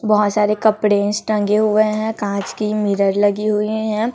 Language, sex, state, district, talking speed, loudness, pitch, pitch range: Hindi, female, Chhattisgarh, Raipur, 175 wpm, -17 LUFS, 210 Hz, 205-215 Hz